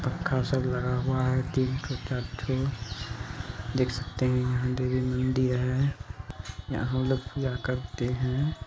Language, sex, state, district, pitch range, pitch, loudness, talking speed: Hindi, male, Bihar, Araria, 120-130 Hz, 125 Hz, -29 LUFS, 130 wpm